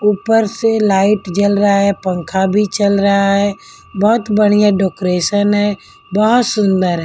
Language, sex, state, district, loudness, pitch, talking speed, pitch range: Hindi, female, Delhi, New Delhi, -14 LUFS, 205 Hz, 160 wpm, 195-210 Hz